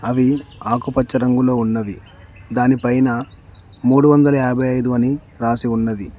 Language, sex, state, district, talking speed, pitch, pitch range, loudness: Telugu, male, Telangana, Mahabubabad, 115 wpm, 120 Hz, 105-130 Hz, -17 LUFS